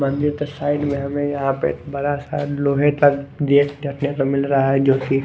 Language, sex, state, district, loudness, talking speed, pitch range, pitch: Hindi, male, Chandigarh, Chandigarh, -20 LUFS, 230 wpm, 140-145 Hz, 140 Hz